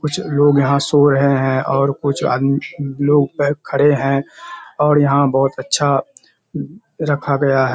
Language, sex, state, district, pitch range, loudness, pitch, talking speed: Hindi, male, Bihar, Kishanganj, 135-145 Hz, -16 LUFS, 140 Hz, 145 wpm